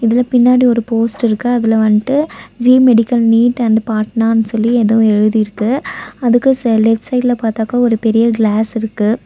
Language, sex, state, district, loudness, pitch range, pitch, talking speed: Tamil, female, Tamil Nadu, Nilgiris, -13 LUFS, 220-245 Hz, 230 Hz, 155 wpm